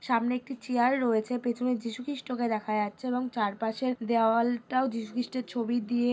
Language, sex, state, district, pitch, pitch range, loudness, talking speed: Bengali, female, West Bengal, Purulia, 240 Hz, 230-250 Hz, -29 LUFS, 155 wpm